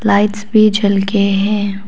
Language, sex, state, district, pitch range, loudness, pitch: Hindi, female, Arunachal Pradesh, Papum Pare, 200-210 Hz, -13 LUFS, 205 Hz